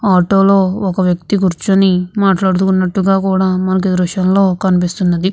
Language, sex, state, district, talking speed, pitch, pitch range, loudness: Telugu, female, Andhra Pradesh, Visakhapatnam, 125 wpm, 190 Hz, 185-195 Hz, -13 LUFS